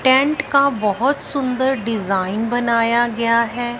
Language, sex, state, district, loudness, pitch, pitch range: Hindi, female, Punjab, Fazilka, -18 LUFS, 240 Hz, 230-265 Hz